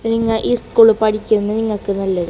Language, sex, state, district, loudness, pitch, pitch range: Malayalam, female, Kerala, Kasaragod, -15 LUFS, 215 Hz, 205-225 Hz